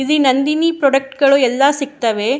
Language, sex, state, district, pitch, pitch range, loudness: Kannada, female, Karnataka, Shimoga, 275 Hz, 265-285 Hz, -15 LUFS